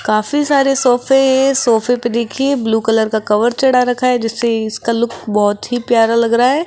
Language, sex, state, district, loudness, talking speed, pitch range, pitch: Hindi, female, Rajasthan, Jaipur, -14 LUFS, 200 wpm, 225-265 Hz, 235 Hz